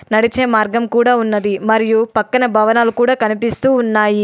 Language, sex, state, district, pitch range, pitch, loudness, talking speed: Telugu, female, Telangana, Adilabad, 215-240 Hz, 225 Hz, -14 LUFS, 140 wpm